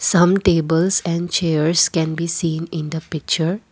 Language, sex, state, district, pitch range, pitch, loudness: English, female, Assam, Kamrup Metropolitan, 160-175 Hz, 165 Hz, -18 LUFS